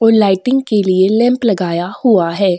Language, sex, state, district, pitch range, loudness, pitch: Hindi, female, Chhattisgarh, Korba, 185-230 Hz, -13 LUFS, 205 Hz